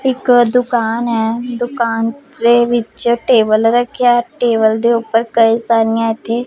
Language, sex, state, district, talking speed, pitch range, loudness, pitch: Punjabi, female, Punjab, Pathankot, 150 wpm, 225-245 Hz, -14 LUFS, 235 Hz